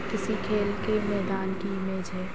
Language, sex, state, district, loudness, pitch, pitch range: Hindi, female, Bihar, Purnia, -29 LUFS, 195 Hz, 190-210 Hz